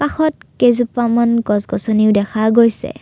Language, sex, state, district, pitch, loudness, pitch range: Assamese, female, Assam, Kamrup Metropolitan, 235 Hz, -15 LUFS, 215-245 Hz